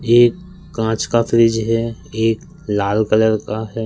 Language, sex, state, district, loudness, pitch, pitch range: Hindi, male, Madhya Pradesh, Katni, -17 LUFS, 115 Hz, 110-120 Hz